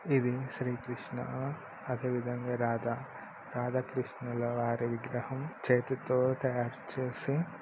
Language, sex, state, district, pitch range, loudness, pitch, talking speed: Telugu, male, Andhra Pradesh, Guntur, 120-130 Hz, -34 LUFS, 125 Hz, 65 wpm